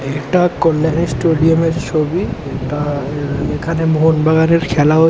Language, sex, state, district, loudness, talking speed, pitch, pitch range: Bengali, male, West Bengal, Jhargram, -15 LUFS, 120 wpm, 160 Hz, 145-165 Hz